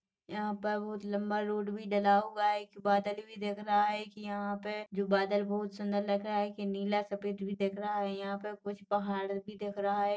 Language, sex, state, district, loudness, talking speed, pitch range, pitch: Hindi, female, Chhattisgarh, Rajnandgaon, -34 LUFS, 235 wpm, 200-210 Hz, 205 Hz